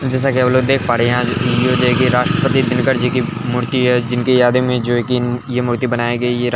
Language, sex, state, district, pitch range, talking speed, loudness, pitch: Hindi, male, Bihar, Begusarai, 120-125 Hz, 240 wpm, -15 LUFS, 125 Hz